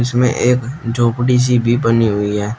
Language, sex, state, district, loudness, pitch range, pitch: Hindi, male, Uttar Pradesh, Shamli, -15 LUFS, 115-125 Hz, 120 Hz